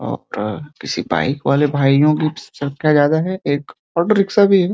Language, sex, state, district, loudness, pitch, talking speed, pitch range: Hindi, male, Uttar Pradesh, Deoria, -17 LUFS, 155 Hz, 165 wpm, 145-185 Hz